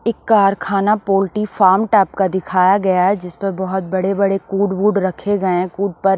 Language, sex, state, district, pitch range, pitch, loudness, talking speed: Hindi, female, Maharashtra, Washim, 190-200 Hz, 195 Hz, -16 LUFS, 195 wpm